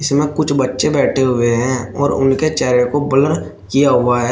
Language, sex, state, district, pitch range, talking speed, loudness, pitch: Hindi, male, Uttar Pradesh, Shamli, 125-145 Hz, 195 wpm, -15 LUFS, 135 Hz